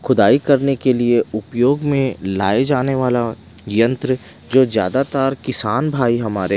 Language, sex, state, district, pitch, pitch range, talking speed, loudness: Hindi, male, Odisha, Malkangiri, 125 Hz, 110-135 Hz, 135 wpm, -17 LUFS